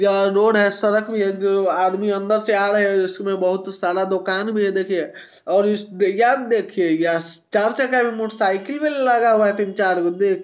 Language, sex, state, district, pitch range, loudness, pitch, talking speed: Hindi, male, Bihar, Sitamarhi, 190-215 Hz, -19 LUFS, 200 Hz, 205 wpm